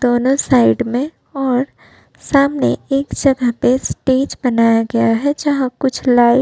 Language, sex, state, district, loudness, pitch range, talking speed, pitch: Hindi, female, Uttar Pradesh, Budaun, -15 LUFS, 240-275 Hz, 150 wpm, 260 Hz